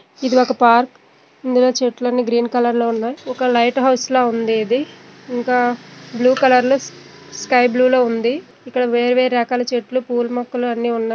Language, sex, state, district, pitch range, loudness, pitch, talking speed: Telugu, female, Andhra Pradesh, Srikakulam, 240-255 Hz, -17 LUFS, 245 Hz, 165 wpm